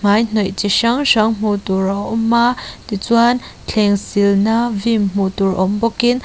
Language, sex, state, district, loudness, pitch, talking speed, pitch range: Mizo, female, Mizoram, Aizawl, -16 LUFS, 215 Hz, 165 wpm, 200-230 Hz